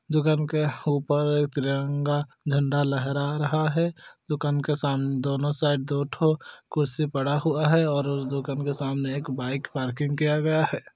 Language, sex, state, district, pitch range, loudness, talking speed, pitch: Hindi, male, Chhattisgarh, Korba, 140-150 Hz, -26 LUFS, 165 wpm, 145 Hz